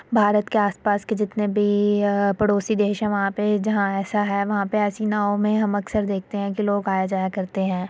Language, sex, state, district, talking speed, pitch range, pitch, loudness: Hindi, female, Uttar Pradesh, Muzaffarnagar, 220 wpm, 200-210 Hz, 205 Hz, -22 LUFS